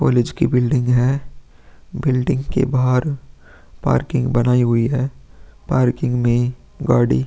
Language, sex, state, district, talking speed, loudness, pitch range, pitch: Hindi, male, Uttar Pradesh, Hamirpur, 125 wpm, -18 LUFS, 120-135 Hz, 125 Hz